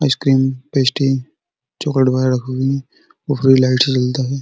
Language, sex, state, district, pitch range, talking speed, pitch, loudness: Hindi, male, Uttar Pradesh, Muzaffarnagar, 130-135 Hz, 165 wpm, 130 Hz, -16 LUFS